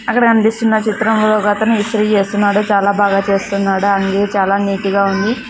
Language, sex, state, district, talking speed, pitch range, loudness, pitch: Telugu, female, Andhra Pradesh, Sri Satya Sai, 165 wpm, 200-220 Hz, -14 LUFS, 205 Hz